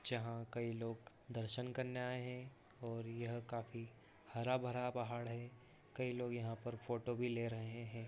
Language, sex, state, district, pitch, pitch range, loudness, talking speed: Hindi, male, Bihar, Samastipur, 120 Hz, 115-125 Hz, -44 LUFS, 165 wpm